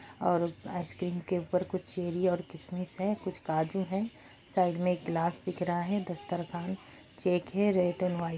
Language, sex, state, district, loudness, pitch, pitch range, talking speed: Hindi, female, Uttar Pradesh, Jyotiba Phule Nagar, -33 LUFS, 180 Hz, 175-185 Hz, 180 wpm